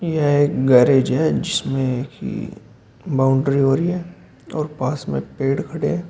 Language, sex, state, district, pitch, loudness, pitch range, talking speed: Hindi, male, Uttar Pradesh, Shamli, 135 Hz, -19 LUFS, 130-160 Hz, 145 wpm